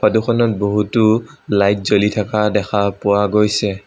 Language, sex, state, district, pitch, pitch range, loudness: Assamese, male, Assam, Sonitpur, 105 Hz, 100-110 Hz, -16 LUFS